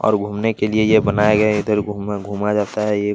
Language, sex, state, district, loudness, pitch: Hindi, male, Chhattisgarh, Kabirdham, -18 LUFS, 105 Hz